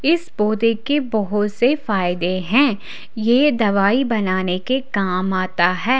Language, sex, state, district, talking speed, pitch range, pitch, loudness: Hindi, female, Haryana, Charkhi Dadri, 140 wpm, 185-255 Hz, 215 Hz, -18 LUFS